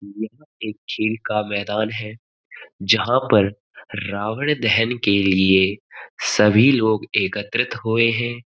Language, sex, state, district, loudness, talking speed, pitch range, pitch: Hindi, male, Uttarakhand, Uttarkashi, -19 LUFS, 120 wpm, 105-115 Hz, 110 Hz